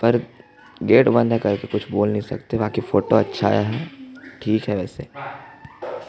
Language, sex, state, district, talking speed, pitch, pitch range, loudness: Hindi, male, Chhattisgarh, Jashpur, 185 wpm, 115 Hz, 105-135 Hz, -20 LUFS